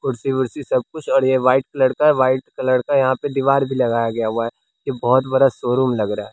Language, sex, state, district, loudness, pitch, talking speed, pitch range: Hindi, male, Bihar, West Champaran, -18 LUFS, 130 Hz, 265 wpm, 125-135 Hz